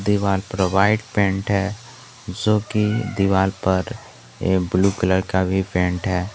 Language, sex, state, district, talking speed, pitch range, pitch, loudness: Hindi, male, Jharkhand, Garhwa, 140 wpm, 95-105 Hz, 100 Hz, -20 LUFS